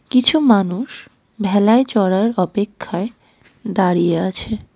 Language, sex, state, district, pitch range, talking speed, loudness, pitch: Bengali, female, West Bengal, Darjeeling, 190-230 Hz, 90 wpm, -17 LUFS, 210 Hz